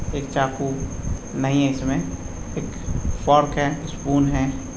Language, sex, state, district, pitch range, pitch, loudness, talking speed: Hindi, male, Bihar, Madhepura, 135-140 Hz, 135 Hz, -23 LUFS, 125 wpm